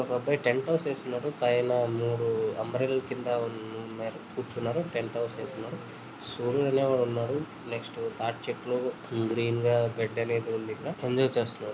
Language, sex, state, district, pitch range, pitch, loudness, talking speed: Telugu, male, Andhra Pradesh, Srikakulam, 115-130 Hz, 120 Hz, -30 LUFS, 135 wpm